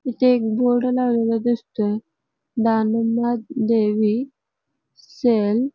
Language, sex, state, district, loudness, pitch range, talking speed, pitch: Marathi, female, Karnataka, Belgaum, -20 LUFS, 220-250 Hz, 85 wpm, 230 Hz